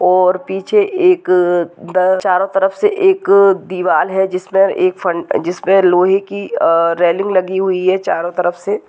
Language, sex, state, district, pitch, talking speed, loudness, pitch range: Hindi, female, Bihar, Madhepura, 185 Hz, 135 wpm, -14 LUFS, 180-195 Hz